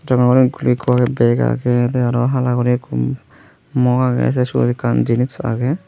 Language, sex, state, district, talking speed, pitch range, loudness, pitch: Chakma, male, Tripura, Unakoti, 145 wpm, 120-125 Hz, -16 LUFS, 125 Hz